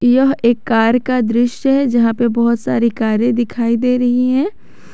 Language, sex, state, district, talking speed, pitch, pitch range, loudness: Hindi, male, Jharkhand, Garhwa, 180 wpm, 240 Hz, 235-250 Hz, -15 LUFS